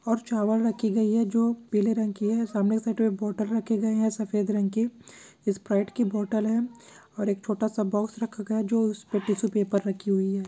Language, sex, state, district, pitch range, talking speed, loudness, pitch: Hindi, male, Maharashtra, Chandrapur, 205-225 Hz, 210 wpm, -27 LUFS, 215 Hz